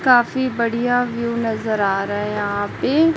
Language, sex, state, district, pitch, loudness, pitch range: Hindi, female, Chhattisgarh, Raipur, 235 Hz, -20 LUFS, 205-245 Hz